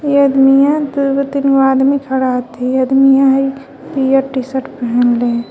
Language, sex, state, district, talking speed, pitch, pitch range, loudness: Magahi, female, Jharkhand, Palamu, 140 wpm, 270 Hz, 260-275 Hz, -13 LUFS